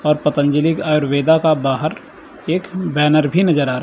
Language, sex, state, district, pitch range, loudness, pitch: Hindi, male, Chandigarh, Chandigarh, 145-175 Hz, -16 LUFS, 155 Hz